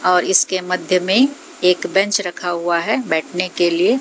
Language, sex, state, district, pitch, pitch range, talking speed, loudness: Hindi, female, Haryana, Jhajjar, 185 Hz, 175-195 Hz, 180 wpm, -17 LUFS